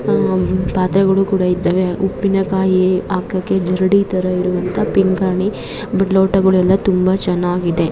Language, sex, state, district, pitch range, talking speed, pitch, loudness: Kannada, female, Karnataka, Mysore, 180-195 Hz, 105 wpm, 185 Hz, -16 LUFS